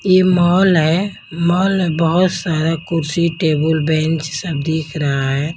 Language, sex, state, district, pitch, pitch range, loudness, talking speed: Hindi, female, Haryana, Jhajjar, 165 Hz, 155-180 Hz, -16 LUFS, 150 wpm